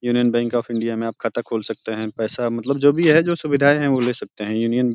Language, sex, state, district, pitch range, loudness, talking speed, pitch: Hindi, male, Uttar Pradesh, Deoria, 115-140 Hz, -20 LUFS, 290 wpm, 120 Hz